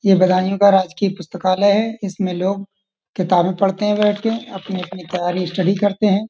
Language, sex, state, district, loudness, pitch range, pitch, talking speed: Hindi, male, Uttar Pradesh, Budaun, -18 LUFS, 185-205 Hz, 195 Hz, 180 wpm